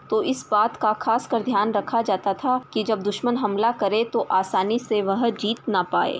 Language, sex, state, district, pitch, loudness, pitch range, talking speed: Hindi, female, Uttar Pradesh, Ghazipur, 220 Hz, -23 LUFS, 205-235 Hz, 210 wpm